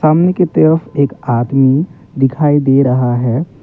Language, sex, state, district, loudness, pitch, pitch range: Hindi, male, Assam, Kamrup Metropolitan, -13 LUFS, 140 Hz, 130-155 Hz